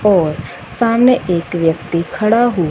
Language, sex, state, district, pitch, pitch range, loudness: Hindi, female, Punjab, Fazilka, 180 Hz, 170-230 Hz, -15 LUFS